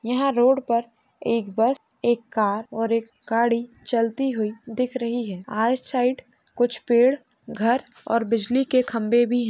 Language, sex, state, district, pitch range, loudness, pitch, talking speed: Hindi, female, Uttar Pradesh, Hamirpur, 230-250 Hz, -23 LUFS, 235 Hz, 165 wpm